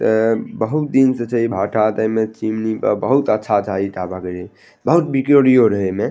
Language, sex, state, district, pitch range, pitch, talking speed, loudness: Maithili, male, Bihar, Madhepura, 100-130 Hz, 110 Hz, 165 wpm, -17 LUFS